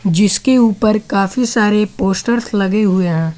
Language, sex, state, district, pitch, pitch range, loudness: Hindi, male, Jharkhand, Garhwa, 205 Hz, 195-225 Hz, -14 LUFS